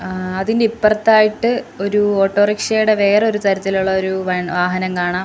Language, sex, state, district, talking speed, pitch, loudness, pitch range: Malayalam, female, Kerala, Kollam, 105 wpm, 200 Hz, -16 LUFS, 185-215 Hz